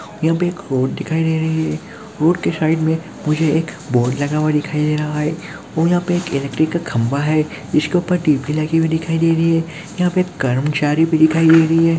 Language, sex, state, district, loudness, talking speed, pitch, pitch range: Hindi, male, Chhattisgarh, Kabirdham, -17 LUFS, 220 wpm, 160 Hz, 150-165 Hz